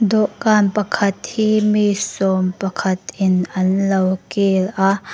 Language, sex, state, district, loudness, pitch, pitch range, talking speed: Mizo, female, Mizoram, Aizawl, -18 LUFS, 195 Hz, 190-210 Hz, 115 wpm